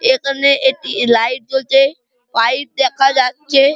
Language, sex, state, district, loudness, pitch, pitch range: Bengali, male, West Bengal, Malda, -14 LUFS, 270 Hz, 250-280 Hz